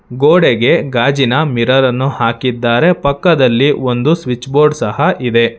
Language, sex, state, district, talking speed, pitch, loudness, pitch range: Kannada, male, Karnataka, Bangalore, 120 wpm, 130 Hz, -12 LUFS, 120-145 Hz